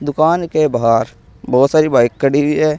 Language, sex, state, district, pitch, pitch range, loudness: Hindi, male, Uttar Pradesh, Saharanpur, 145 Hz, 120-155 Hz, -14 LUFS